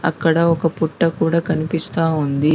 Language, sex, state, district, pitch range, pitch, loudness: Telugu, female, Telangana, Mahabubabad, 160-165 Hz, 165 Hz, -18 LUFS